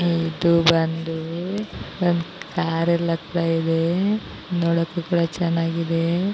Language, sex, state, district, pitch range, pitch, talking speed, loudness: Kannada, female, Karnataka, Bijapur, 165-175 Hz, 170 Hz, 85 wpm, -22 LUFS